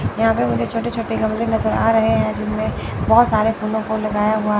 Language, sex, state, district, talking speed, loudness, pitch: Hindi, female, Chandigarh, Chandigarh, 220 wpm, -18 LUFS, 215 Hz